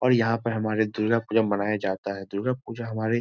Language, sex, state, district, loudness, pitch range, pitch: Hindi, male, Bihar, Jamui, -26 LUFS, 105-115 Hz, 110 Hz